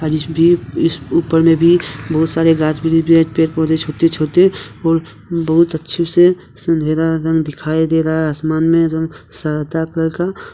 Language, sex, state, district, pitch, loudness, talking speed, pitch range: Hindi, male, Jharkhand, Deoghar, 160 Hz, -15 LUFS, 175 wpm, 160-165 Hz